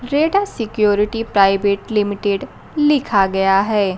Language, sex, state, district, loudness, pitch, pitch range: Hindi, female, Bihar, Kaimur, -17 LUFS, 210 Hz, 200-245 Hz